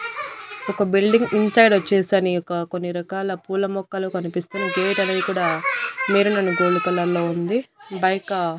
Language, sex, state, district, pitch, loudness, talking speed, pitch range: Telugu, female, Andhra Pradesh, Annamaya, 190 Hz, -21 LUFS, 145 wpm, 180-200 Hz